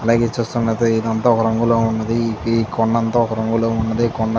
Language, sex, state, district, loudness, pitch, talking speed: Telugu, male, Andhra Pradesh, Chittoor, -18 LUFS, 115 Hz, 190 wpm